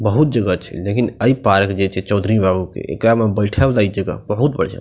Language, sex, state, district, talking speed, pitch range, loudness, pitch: Maithili, male, Bihar, Madhepura, 250 wpm, 95-115 Hz, -17 LUFS, 100 Hz